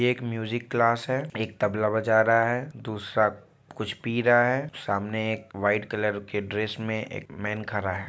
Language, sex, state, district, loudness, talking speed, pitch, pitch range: Hindi, male, Bihar, Muzaffarpur, -26 LUFS, 195 wpm, 110 Hz, 105-120 Hz